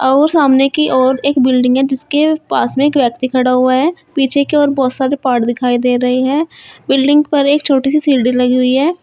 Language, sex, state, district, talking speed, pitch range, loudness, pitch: Hindi, female, Uttar Pradesh, Shamli, 225 wpm, 255-290 Hz, -13 LUFS, 270 Hz